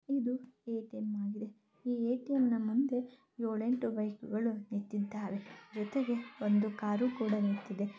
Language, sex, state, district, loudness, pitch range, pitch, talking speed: Kannada, female, Karnataka, Chamarajanagar, -35 LUFS, 210-250 Hz, 225 Hz, 150 wpm